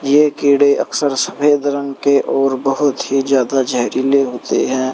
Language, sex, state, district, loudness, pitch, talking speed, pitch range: Hindi, male, Haryana, Rohtak, -15 LUFS, 140 Hz, 160 wpm, 135-140 Hz